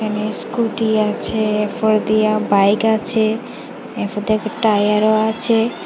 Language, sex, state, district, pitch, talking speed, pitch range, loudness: Bengali, female, Tripura, West Tripura, 215 Hz, 115 wpm, 215-225 Hz, -17 LUFS